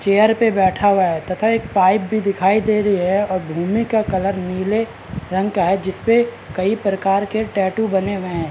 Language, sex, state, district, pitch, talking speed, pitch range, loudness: Hindi, male, Bihar, Madhepura, 195 Hz, 205 wpm, 185-215 Hz, -18 LUFS